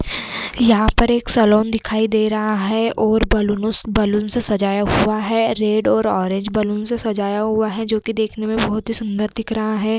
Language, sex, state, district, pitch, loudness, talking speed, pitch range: Hindi, female, Bihar, Vaishali, 215 Hz, -18 LUFS, 200 wpm, 210-225 Hz